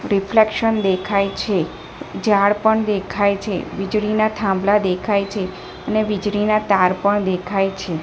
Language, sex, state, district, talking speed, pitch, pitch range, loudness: Gujarati, female, Gujarat, Gandhinagar, 125 wpm, 200 Hz, 195-215 Hz, -19 LUFS